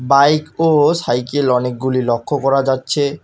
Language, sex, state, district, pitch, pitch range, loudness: Bengali, male, West Bengal, Alipurduar, 135 Hz, 125-145 Hz, -16 LUFS